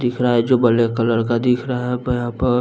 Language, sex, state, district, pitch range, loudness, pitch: Hindi, male, Bihar, West Champaran, 120-125 Hz, -18 LUFS, 120 Hz